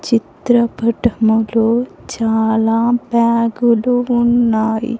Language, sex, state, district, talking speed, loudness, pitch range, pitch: Telugu, female, Andhra Pradesh, Sri Satya Sai, 50 wpm, -15 LUFS, 225-240 Hz, 230 Hz